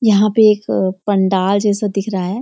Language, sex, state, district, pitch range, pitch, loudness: Hindi, female, Uttarakhand, Uttarkashi, 190-210 Hz, 205 Hz, -15 LUFS